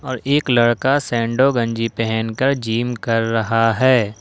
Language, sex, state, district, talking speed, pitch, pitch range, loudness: Hindi, male, Jharkhand, Ranchi, 140 wpm, 120 Hz, 115-130 Hz, -18 LUFS